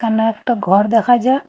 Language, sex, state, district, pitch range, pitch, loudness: Bengali, female, Assam, Hailakandi, 220-245 Hz, 230 Hz, -14 LUFS